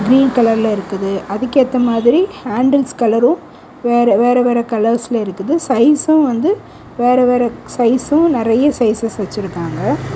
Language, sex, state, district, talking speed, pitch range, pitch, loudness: Tamil, female, Tamil Nadu, Kanyakumari, 125 wpm, 225-265 Hz, 240 Hz, -14 LUFS